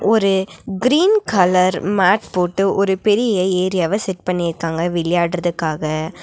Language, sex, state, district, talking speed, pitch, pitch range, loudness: Tamil, female, Tamil Nadu, Nilgiris, 105 wpm, 185 Hz, 175-200 Hz, -17 LUFS